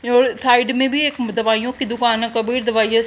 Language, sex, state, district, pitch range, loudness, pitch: Hindi, female, Haryana, Charkhi Dadri, 230-250 Hz, -17 LUFS, 245 Hz